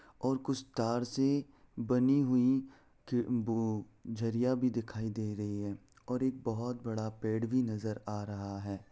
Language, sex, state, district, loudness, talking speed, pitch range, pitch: Hindi, male, Bihar, Saran, -34 LUFS, 160 wpm, 110-125 Hz, 115 Hz